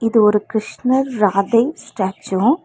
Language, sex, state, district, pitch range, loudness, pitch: Tamil, female, Tamil Nadu, Nilgiris, 205-250 Hz, -18 LUFS, 220 Hz